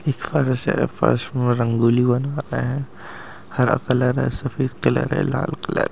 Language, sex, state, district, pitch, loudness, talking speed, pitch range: Angika, male, Bihar, Madhepura, 125 Hz, -21 LUFS, 180 wpm, 125-140 Hz